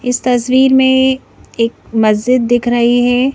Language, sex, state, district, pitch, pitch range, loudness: Hindi, female, Madhya Pradesh, Bhopal, 245 Hz, 240-260 Hz, -12 LUFS